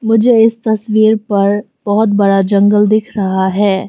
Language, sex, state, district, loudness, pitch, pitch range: Hindi, female, Arunachal Pradesh, Longding, -12 LUFS, 205 Hz, 200-220 Hz